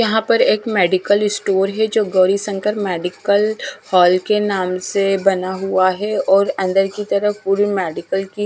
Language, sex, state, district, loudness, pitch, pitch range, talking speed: Hindi, female, Bihar, West Champaran, -17 LUFS, 195 Hz, 190-210 Hz, 165 wpm